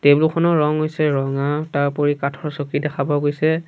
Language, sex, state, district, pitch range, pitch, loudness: Assamese, male, Assam, Sonitpur, 145-155 Hz, 145 Hz, -20 LUFS